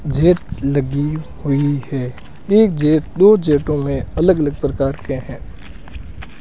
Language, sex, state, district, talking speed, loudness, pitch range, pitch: Hindi, male, Rajasthan, Bikaner, 130 wpm, -17 LUFS, 135-155 Hz, 145 Hz